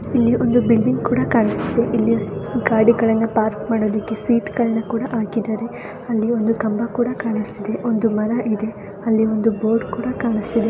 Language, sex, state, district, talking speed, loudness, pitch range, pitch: Kannada, female, Karnataka, Mysore, 145 wpm, -19 LUFS, 220-235 Hz, 225 Hz